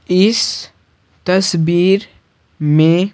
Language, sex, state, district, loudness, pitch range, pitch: Hindi, male, Bihar, Patna, -14 LUFS, 165-195 Hz, 180 Hz